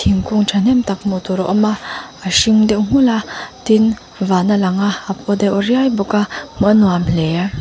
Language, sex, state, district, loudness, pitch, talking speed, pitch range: Mizo, female, Mizoram, Aizawl, -15 LUFS, 205 Hz, 220 wpm, 190-220 Hz